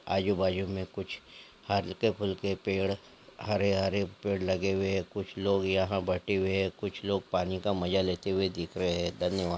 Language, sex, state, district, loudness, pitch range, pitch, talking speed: Angika, male, Bihar, Samastipur, -31 LUFS, 95-100 Hz, 95 Hz, 175 wpm